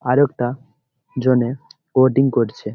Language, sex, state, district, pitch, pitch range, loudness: Bengali, male, West Bengal, Malda, 130 Hz, 120-135 Hz, -18 LUFS